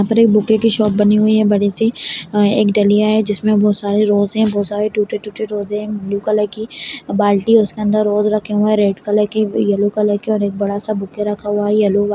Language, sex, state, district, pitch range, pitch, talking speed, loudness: Kumaoni, female, Uttarakhand, Uttarkashi, 205-215 Hz, 210 Hz, 255 wpm, -15 LUFS